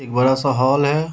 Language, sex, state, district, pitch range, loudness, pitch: Hindi, male, Bihar, Darbhanga, 130-145 Hz, -17 LUFS, 135 Hz